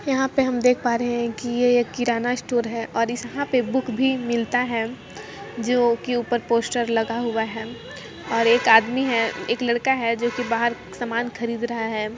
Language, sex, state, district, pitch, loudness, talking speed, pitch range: Hindi, female, Jharkhand, Jamtara, 235 Hz, -22 LUFS, 195 wpm, 230-245 Hz